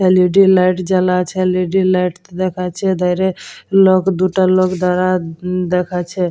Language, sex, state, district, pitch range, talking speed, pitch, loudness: Bengali, female, West Bengal, Jalpaiguri, 180-185 Hz, 125 wpm, 185 Hz, -15 LUFS